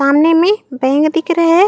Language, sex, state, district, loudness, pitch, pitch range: Chhattisgarhi, female, Chhattisgarh, Raigarh, -13 LUFS, 330 Hz, 280-340 Hz